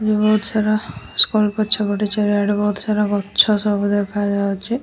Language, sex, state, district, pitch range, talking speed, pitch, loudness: Odia, male, Odisha, Nuapada, 205-215 Hz, 125 wpm, 210 Hz, -17 LUFS